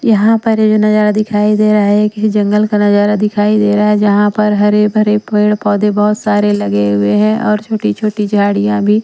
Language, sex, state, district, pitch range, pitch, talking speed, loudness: Hindi, female, Maharashtra, Washim, 205-215 Hz, 210 Hz, 210 wpm, -12 LUFS